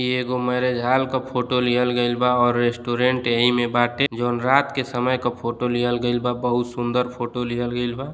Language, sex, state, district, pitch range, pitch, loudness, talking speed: Bhojpuri, male, Uttar Pradesh, Deoria, 120-125 Hz, 125 Hz, -21 LUFS, 215 wpm